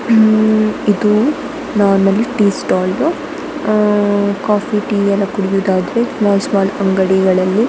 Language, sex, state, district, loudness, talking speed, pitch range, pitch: Kannada, female, Karnataka, Dakshina Kannada, -14 LUFS, 100 wpm, 195-215 Hz, 205 Hz